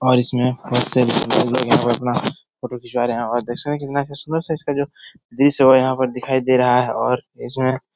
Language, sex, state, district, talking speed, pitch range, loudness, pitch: Hindi, male, Bihar, Jahanabad, 145 wpm, 125-140 Hz, -18 LUFS, 130 Hz